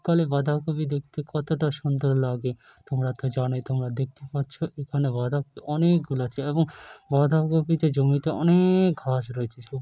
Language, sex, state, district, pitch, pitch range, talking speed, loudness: Bengali, male, West Bengal, Dakshin Dinajpur, 140 Hz, 130-155 Hz, 160 wpm, -25 LUFS